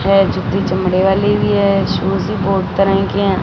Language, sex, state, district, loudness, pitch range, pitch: Hindi, female, Punjab, Fazilka, -15 LUFS, 190-195 Hz, 195 Hz